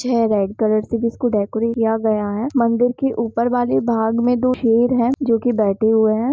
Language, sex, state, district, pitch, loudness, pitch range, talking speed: Hindi, female, Jharkhand, Jamtara, 230 Hz, -18 LUFS, 220-245 Hz, 210 wpm